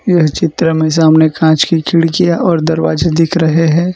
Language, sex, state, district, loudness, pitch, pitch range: Hindi, male, Gujarat, Valsad, -11 LUFS, 165 Hz, 160-170 Hz